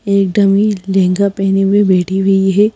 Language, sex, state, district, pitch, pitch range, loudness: Hindi, female, Madhya Pradesh, Bhopal, 195 Hz, 190-200 Hz, -12 LUFS